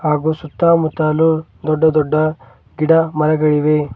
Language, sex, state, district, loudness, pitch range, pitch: Kannada, male, Karnataka, Bidar, -16 LUFS, 150-160 Hz, 155 Hz